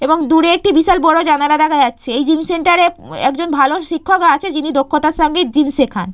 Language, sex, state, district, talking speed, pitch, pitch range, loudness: Bengali, female, West Bengal, Purulia, 215 wpm, 310 Hz, 290-340 Hz, -13 LUFS